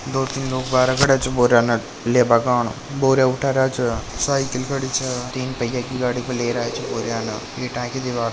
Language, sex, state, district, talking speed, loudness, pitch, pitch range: Marwari, male, Rajasthan, Nagaur, 215 wpm, -20 LUFS, 125 Hz, 120-130 Hz